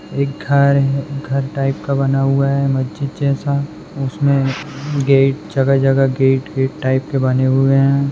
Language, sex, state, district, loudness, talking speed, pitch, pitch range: Hindi, male, Maharashtra, Pune, -16 LUFS, 155 wpm, 135 Hz, 135-140 Hz